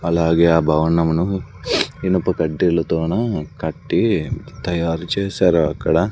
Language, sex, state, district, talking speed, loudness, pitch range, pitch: Telugu, male, Andhra Pradesh, Sri Satya Sai, 110 wpm, -19 LUFS, 80-90 Hz, 85 Hz